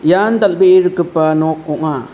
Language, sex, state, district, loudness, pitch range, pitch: Garo, male, Meghalaya, South Garo Hills, -13 LUFS, 155-185 Hz, 165 Hz